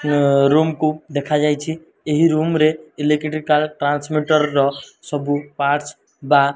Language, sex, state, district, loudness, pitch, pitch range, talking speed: Odia, male, Odisha, Malkangiri, -18 LUFS, 150 Hz, 145-155 Hz, 110 wpm